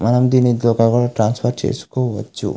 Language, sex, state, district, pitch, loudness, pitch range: Telugu, male, Andhra Pradesh, Anantapur, 120 Hz, -17 LUFS, 115-125 Hz